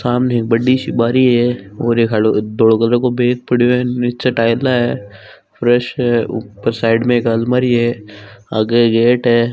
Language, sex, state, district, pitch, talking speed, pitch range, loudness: Marwari, male, Rajasthan, Nagaur, 120 Hz, 180 wpm, 115-125 Hz, -15 LUFS